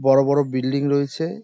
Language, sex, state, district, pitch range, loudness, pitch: Bengali, male, West Bengal, Dakshin Dinajpur, 135-145 Hz, -20 LUFS, 140 Hz